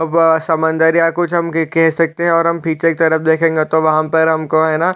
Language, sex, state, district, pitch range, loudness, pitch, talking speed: Hindi, male, Chhattisgarh, Raigarh, 160-165 Hz, -14 LUFS, 160 Hz, 255 wpm